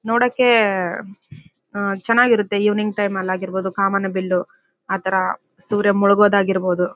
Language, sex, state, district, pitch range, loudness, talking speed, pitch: Kannada, female, Karnataka, Bellary, 190-210 Hz, -18 LUFS, 105 wpm, 195 Hz